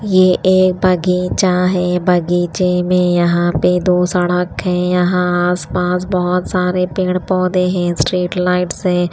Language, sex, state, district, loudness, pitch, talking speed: Hindi, female, Haryana, Rohtak, -15 LUFS, 180 Hz, 145 wpm